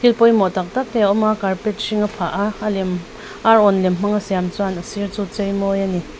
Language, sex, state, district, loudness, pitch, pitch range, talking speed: Mizo, female, Mizoram, Aizawl, -19 LUFS, 205 Hz, 190-215 Hz, 280 wpm